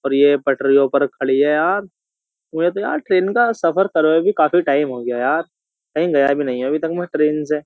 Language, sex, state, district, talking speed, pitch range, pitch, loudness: Hindi, male, Uttar Pradesh, Jyotiba Phule Nagar, 235 wpm, 140-175 Hz, 150 Hz, -17 LUFS